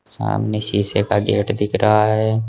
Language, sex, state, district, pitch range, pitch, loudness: Hindi, male, Uttar Pradesh, Saharanpur, 105-110 Hz, 105 Hz, -18 LUFS